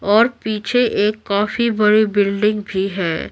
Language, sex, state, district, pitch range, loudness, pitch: Hindi, female, Bihar, Patna, 200-220 Hz, -17 LUFS, 210 Hz